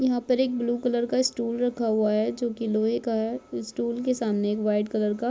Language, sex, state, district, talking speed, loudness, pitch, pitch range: Hindi, female, Jharkhand, Jamtara, 260 wpm, -26 LUFS, 235 Hz, 215-245 Hz